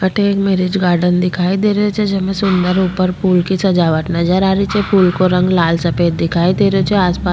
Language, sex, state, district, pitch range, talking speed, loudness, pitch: Rajasthani, female, Rajasthan, Churu, 180-195 Hz, 235 wpm, -14 LUFS, 185 Hz